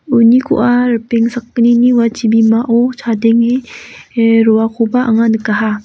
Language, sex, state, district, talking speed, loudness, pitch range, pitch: Garo, female, Meghalaya, West Garo Hills, 105 wpm, -12 LUFS, 225-240 Hz, 230 Hz